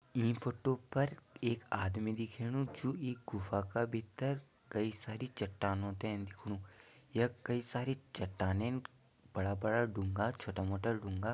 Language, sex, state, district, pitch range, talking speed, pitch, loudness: Garhwali, male, Uttarakhand, Tehri Garhwal, 100-125 Hz, 140 wpm, 115 Hz, -39 LUFS